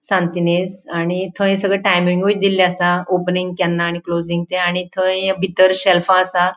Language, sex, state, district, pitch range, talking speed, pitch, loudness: Konkani, female, Goa, North and South Goa, 175-190 Hz, 155 wpm, 180 Hz, -16 LUFS